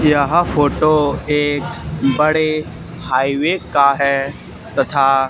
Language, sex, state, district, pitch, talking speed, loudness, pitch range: Hindi, male, Haryana, Charkhi Dadri, 145 Hz, 90 wpm, -16 LUFS, 140-155 Hz